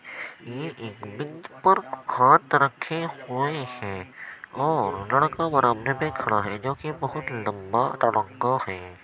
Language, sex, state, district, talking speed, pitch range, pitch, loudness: Hindi, male, Uttar Pradesh, Jyotiba Phule Nagar, 135 wpm, 105-155 Hz, 135 Hz, -24 LUFS